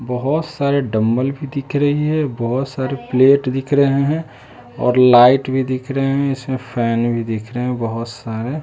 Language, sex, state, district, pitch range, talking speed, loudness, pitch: Hindi, male, Bihar, West Champaran, 120-140 Hz, 180 wpm, -17 LUFS, 130 Hz